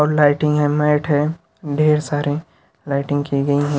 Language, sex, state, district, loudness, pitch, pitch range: Hindi, male, Haryana, Charkhi Dadri, -18 LUFS, 145 Hz, 145-150 Hz